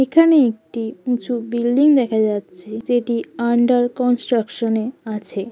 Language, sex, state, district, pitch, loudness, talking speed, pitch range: Bengali, female, West Bengal, Paschim Medinipur, 235 Hz, -18 LUFS, 130 wpm, 220-250 Hz